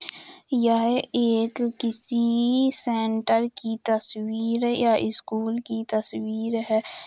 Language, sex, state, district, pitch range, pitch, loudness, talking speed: Hindi, female, Uttar Pradesh, Jalaun, 225-240 Hz, 230 Hz, -24 LUFS, 100 wpm